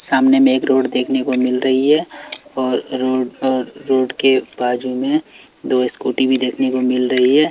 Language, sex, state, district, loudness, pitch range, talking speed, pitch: Hindi, male, Bihar, Patna, -17 LUFS, 125-135 Hz, 190 wpm, 130 Hz